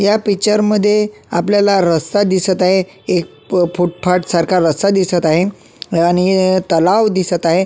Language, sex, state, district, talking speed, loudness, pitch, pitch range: Marathi, male, Maharashtra, Solapur, 135 wpm, -14 LUFS, 185 Hz, 175-200 Hz